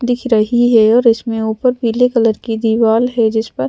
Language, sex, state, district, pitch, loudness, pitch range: Hindi, female, Madhya Pradesh, Bhopal, 230 Hz, -13 LUFS, 220-240 Hz